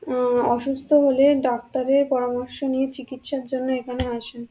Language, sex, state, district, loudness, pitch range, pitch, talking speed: Bengali, female, West Bengal, Dakshin Dinajpur, -22 LUFS, 245-275 Hz, 260 Hz, 145 wpm